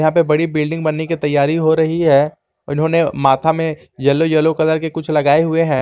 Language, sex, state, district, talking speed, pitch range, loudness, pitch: Hindi, male, Jharkhand, Garhwa, 195 wpm, 145-160 Hz, -16 LUFS, 160 Hz